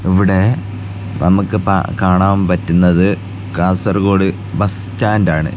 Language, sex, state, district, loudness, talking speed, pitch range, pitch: Malayalam, male, Kerala, Kasaragod, -14 LUFS, 95 wpm, 95-100 Hz, 95 Hz